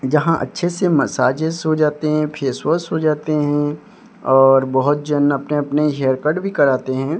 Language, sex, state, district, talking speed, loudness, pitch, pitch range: Hindi, male, Odisha, Sambalpur, 185 wpm, -17 LUFS, 150 Hz, 135-160 Hz